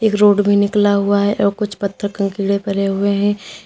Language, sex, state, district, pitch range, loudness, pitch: Hindi, female, Uttar Pradesh, Lalitpur, 200-205 Hz, -16 LUFS, 200 Hz